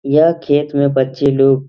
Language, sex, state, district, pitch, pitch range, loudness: Hindi, male, Bihar, Lakhisarai, 140 Hz, 135-145 Hz, -14 LUFS